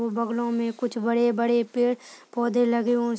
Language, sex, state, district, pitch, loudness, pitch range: Hindi, female, Uttar Pradesh, Deoria, 235 Hz, -25 LUFS, 235-240 Hz